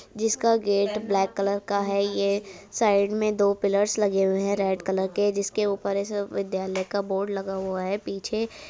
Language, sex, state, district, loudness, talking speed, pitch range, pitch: Hindi, female, Uttar Pradesh, Budaun, -25 LUFS, 195 wpm, 195-205 Hz, 200 Hz